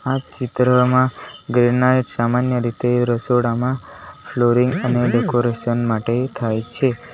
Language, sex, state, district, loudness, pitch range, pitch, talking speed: Gujarati, male, Gujarat, Valsad, -19 LUFS, 120-125 Hz, 120 Hz, 100 wpm